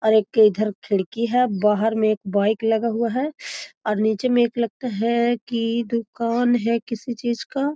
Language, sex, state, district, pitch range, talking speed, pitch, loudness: Magahi, female, Bihar, Gaya, 215-240 Hz, 185 wpm, 230 Hz, -21 LUFS